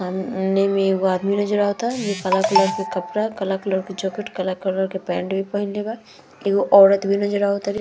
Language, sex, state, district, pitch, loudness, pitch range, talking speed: Bhojpuri, female, Bihar, Gopalganj, 195 Hz, -20 LUFS, 190-205 Hz, 215 wpm